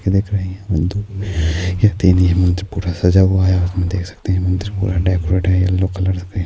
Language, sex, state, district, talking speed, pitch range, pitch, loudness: Urdu, male, Bihar, Saharsa, 230 wpm, 90-95 Hz, 95 Hz, -17 LUFS